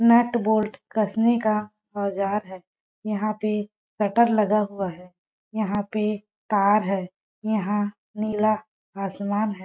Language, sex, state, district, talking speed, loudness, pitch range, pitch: Hindi, female, Chhattisgarh, Balrampur, 120 wpm, -24 LUFS, 200-215 Hz, 210 Hz